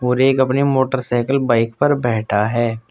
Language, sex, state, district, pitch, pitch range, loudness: Hindi, male, Uttar Pradesh, Saharanpur, 125 Hz, 115-135 Hz, -17 LUFS